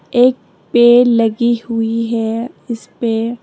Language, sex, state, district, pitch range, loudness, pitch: Hindi, female, Tripura, Dhalai, 225-240 Hz, -14 LUFS, 235 Hz